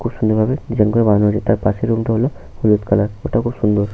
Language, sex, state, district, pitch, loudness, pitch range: Bengali, male, West Bengal, Paschim Medinipur, 110 Hz, -17 LUFS, 105-115 Hz